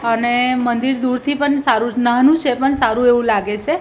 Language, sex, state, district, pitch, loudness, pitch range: Gujarati, female, Gujarat, Gandhinagar, 245 Hz, -16 LUFS, 240-270 Hz